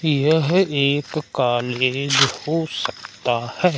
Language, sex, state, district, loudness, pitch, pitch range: Hindi, male, Madhya Pradesh, Umaria, -20 LUFS, 140 Hz, 130-160 Hz